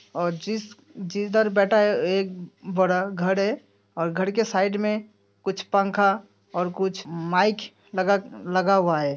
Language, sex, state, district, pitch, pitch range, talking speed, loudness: Hindi, female, Uttar Pradesh, Hamirpur, 195 Hz, 180-205 Hz, 150 wpm, -24 LUFS